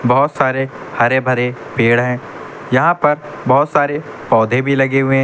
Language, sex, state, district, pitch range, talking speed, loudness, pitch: Hindi, male, Uttar Pradesh, Lucknow, 125-145 Hz, 170 wpm, -15 LUFS, 135 Hz